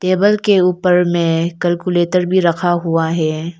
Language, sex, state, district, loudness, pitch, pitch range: Hindi, female, Arunachal Pradesh, Lower Dibang Valley, -15 LUFS, 175 Hz, 170-185 Hz